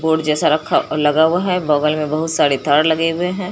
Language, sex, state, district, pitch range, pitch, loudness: Hindi, female, Bihar, Katihar, 150-165 Hz, 160 Hz, -16 LUFS